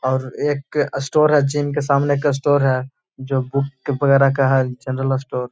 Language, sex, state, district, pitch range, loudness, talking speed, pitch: Hindi, male, Bihar, Gaya, 130-145 Hz, -19 LUFS, 195 wpm, 140 Hz